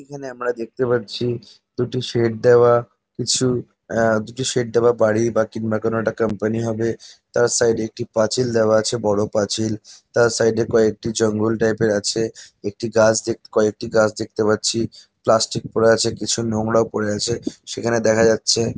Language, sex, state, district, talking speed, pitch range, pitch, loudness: Bengali, male, West Bengal, North 24 Parganas, 170 wpm, 110-120 Hz, 115 Hz, -19 LUFS